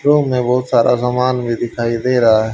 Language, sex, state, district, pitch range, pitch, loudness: Hindi, male, Haryana, Charkhi Dadri, 115-125 Hz, 125 Hz, -15 LUFS